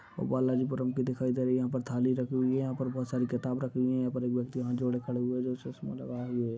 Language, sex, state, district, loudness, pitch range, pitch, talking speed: Hindi, male, Maharashtra, Aurangabad, -32 LUFS, 125-130 Hz, 125 Hz, 300 wpm